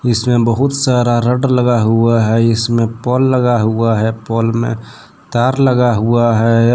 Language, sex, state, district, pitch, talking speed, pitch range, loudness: Hindi, male, Jharkhand, Deoghar, 120 Hz, 160 wpm, 115-125 Hz, -13 LUFS